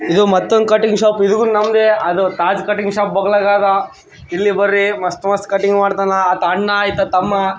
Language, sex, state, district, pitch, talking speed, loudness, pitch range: Kannada, male, Karnataka, Raichur, 200 Hz, 165 wpm, -14 LUFS, 190-205 Hz